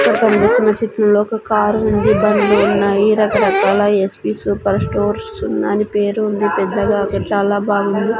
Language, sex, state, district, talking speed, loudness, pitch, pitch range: Telugu, female, Andhra Pradesh, Sri Satya Sai, 140 wpm, -15 LUFS, 210 Hz, 200-215 Hz